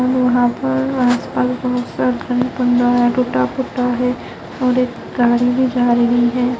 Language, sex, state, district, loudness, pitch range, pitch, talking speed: Hindi, female, Karnataka, Dakshina Kannada, -16 LUFS, 240-250 Hz, 245 Hz, 135 wpm